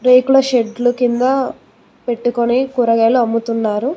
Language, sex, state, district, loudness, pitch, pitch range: Telugu, female, Telangana, Mahabubabad, -15 LUFS, 245 Hz, 230-255 Hz